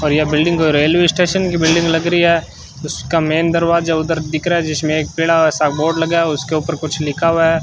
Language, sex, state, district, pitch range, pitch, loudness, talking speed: Hindi, male, Rajasthan, Bikaner, 155-170 Hz, 165 Hz, -15 LUFS, 235 wpm